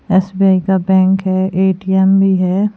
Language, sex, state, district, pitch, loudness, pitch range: Hindi, female, Himachal Pradesh, Shimla, 190 Hz, -13 LUFS, 185-190 Hz